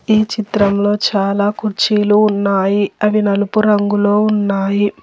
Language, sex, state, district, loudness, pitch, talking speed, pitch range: Telugu, female, Telangana, Hyderabad, -14 LUFS, 205 Hz, 105 wpm, 200-210 Hz